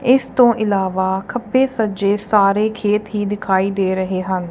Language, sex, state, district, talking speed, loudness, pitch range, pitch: Punjabi, female, Punjab, Kapurthala, 160 wpm, -17 LUFS, 190-220 Hz, 205 Hz